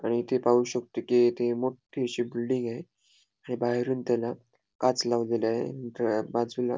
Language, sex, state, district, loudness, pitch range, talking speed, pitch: Marathi, male, Goa, North and South Goa, -28 LUFS, 120-125 Hz, 160 wpm, 120 Hz